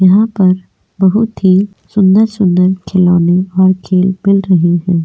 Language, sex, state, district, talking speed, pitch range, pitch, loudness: Hindi, female, Goa, North and South Goa, 140 wpm, 185-195 Hz, 185 Hz, -11 LUFS